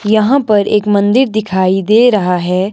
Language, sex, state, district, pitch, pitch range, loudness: Hindi, male, Himachal Pradesh, Shimla, 210 Hz, 190-215 Hz, -11 LUFS